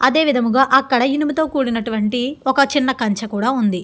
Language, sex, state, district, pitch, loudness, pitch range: Telugu, female, Andhra Pradesh, Guntur, 255 Hz, -17 LUFS, 230-275 Hz